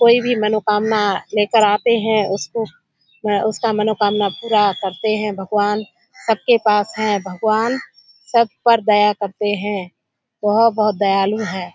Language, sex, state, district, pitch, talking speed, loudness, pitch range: Hindi, female, Bihar, Kishanganj, 210 Hz, 135 wpm, -18 LUFS, 205-220 Hz